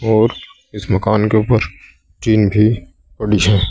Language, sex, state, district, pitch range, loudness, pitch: Hindi, male, Uttar Pradesh, Saharanpur, 100-110 Hz, -15 LUFS, 105 Hz